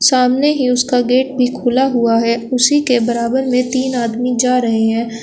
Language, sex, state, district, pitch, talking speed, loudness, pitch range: Hindi, female, Uttar Pradesh, Shamli, 250 Hz, 195 wpm, -14 LUFS, 235-260 Hz